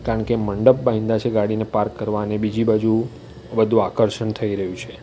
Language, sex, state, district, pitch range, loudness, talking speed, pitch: Gujarati, male, Gujarat, Valsad, 105-115 Hz, -20 LUFS, 190 wpm, 110 Hz